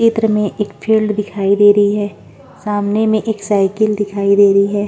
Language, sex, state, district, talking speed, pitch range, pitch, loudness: Hindi, female, Chhattisgarh, Korba, 210 wpm, 205-215 Hz, 205 Hz, -14 LUFS